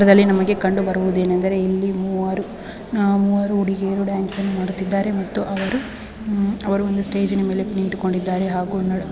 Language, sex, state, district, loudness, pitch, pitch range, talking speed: Kannada, female, Karnataka, Bijapur, -20 LUFS, 195 Hz, 190-200 Hz, 105 wpm